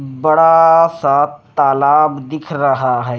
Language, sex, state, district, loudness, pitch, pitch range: Hindi, male, Bihar, Patna, -13 LUFS, 145 Hz, 135-155 Hz